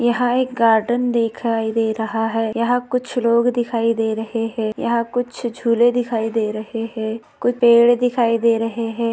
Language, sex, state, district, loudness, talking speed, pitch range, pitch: Hindi, female, Maharashtra, Pune, -19 LUFS, 180 wpm, 225-240 Hz, 230 Hz